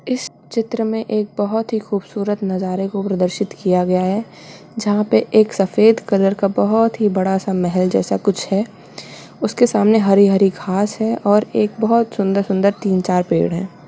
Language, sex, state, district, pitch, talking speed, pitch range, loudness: Hindi, female, Bihar, Samastipur, 200 Hz, 175 wpm, 190-220 Hz, -17 LUFS